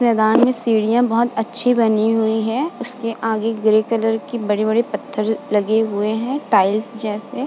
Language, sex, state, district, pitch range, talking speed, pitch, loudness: Hindi, female, Uttar Pradesh, Budaun, 215-235 Hz, 160 wpm, 225 Hz, -18 LUFS